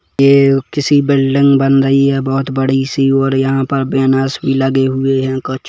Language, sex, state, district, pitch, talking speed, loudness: Hindi, male, Chhattisgarh, Kabirdham, 135 Hz, 200 wpm, -13 LUFS